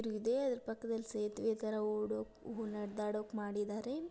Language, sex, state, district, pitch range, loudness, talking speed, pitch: Kannada, female, Karnataka, Dharwad, 210-230 Hz, -39 LUFS, 115 wpm, 215 Hz